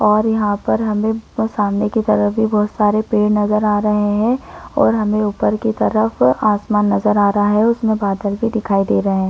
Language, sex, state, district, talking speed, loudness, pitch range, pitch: Hindi, female, Chhattisgarh, Bilaspur, 195 wpm, -16 LUFS, 205-220 Hz, 210 Hz